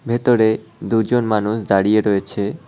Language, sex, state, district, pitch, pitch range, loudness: Bengali, male, West Bengal, Cooch Behar, 110 Hz, 105-120 Hz, -18 LUFS